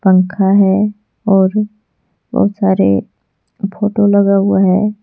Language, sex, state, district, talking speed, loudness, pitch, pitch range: Hindi, female, Jharkhand, Deoghar, 105 wpm, -13 LUFS, 200 Hz, 190-210 Hz